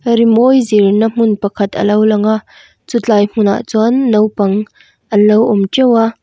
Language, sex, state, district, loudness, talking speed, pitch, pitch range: Mizo, female, Mizoram, Aizawl, -12 LUFS, 165 wpm, 215 Hz, 205-230 Hz